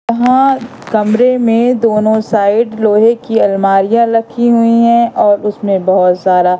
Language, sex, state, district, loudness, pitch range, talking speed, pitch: Hindi, female, Madhya Pradesh, Katni, -11 LUFS, 205-235 Hz, 135 wpm, 225 Hz